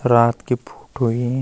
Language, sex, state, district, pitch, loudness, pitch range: Garhwali, male, Uttarakhand, Uttarkashi, 120 Hz, -20 LUFS, 120-125 Hz